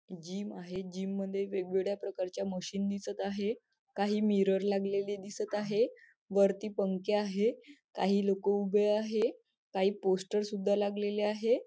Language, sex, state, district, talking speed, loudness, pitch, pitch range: Marathi, female, Maharashtra, Nagpur, 135 wpm, -33 LUFS, 200 Hz, 195-210 Hz